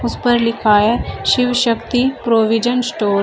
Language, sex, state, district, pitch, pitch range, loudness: Hindi, female, Uttar Pradesh, Shamli, 235 Hz, 225-245 Hz, -15 LUFS